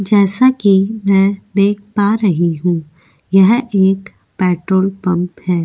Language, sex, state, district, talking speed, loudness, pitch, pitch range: Hindi, female, Goa, North and South Goa, 130 wpm, -14 LUFS, 195 Hz, 180-205 Hz